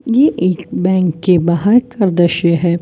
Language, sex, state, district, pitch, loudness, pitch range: Hindi, female, Rajasthan, Bikaner, 180 Hz, -14 LUFS, 170-205 Hz